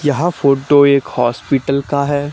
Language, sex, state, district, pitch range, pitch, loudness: Hindi, male, Haryana, Charkhi Dadri, 135-145 Hz, 140 Hz, -14 LUFS